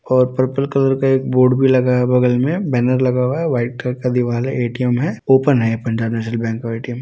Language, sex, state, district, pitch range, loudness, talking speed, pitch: Hindi, male, Bihar, Muzaffarpur, 120-130 Hz, -17 LUFS, 255 wpm, 125 Hz